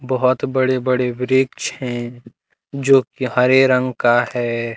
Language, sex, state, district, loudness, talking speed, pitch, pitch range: Hindi, male, Jharkhand, Deoghar, -17 LUFS, 125 wpm, 125 Hz, 120-130 Hz